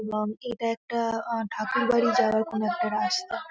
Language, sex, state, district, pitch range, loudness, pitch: Bengali, female, West Bengal, North 24 Parganas, 220-240 Hz, -27 LUFS, 230 Hz